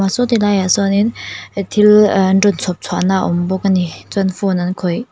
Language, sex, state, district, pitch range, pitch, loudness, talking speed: Mizo, female, Mizoram, Aizawl, 185-205 Hz, 195 Hz, -15 LUFS, 235 wpm